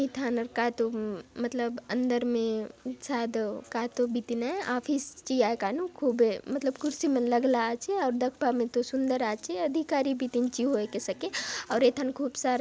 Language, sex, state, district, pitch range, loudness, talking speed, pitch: Halbi, female, Chhattisgarh, Bastar, 235-265 Hz, -29 LUFS, 165 wpm, 245 Hz